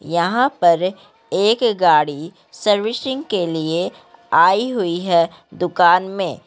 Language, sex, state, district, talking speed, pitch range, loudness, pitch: Hindi, female, Bihar, Gaya, 110 wpm, 170-210 Hz, -17 LUFS, 180 Hz